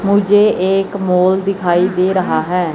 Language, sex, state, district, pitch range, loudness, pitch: Hindi, male, Chandigarh, Chandigarh, 180-195 Hz, -14 LUFS, 190 Hz